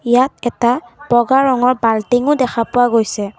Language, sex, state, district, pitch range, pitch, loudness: Assamese, female, Assam, Kamrup Metropolitan, 230-255 Hz, 245 Hz, -15 LUFS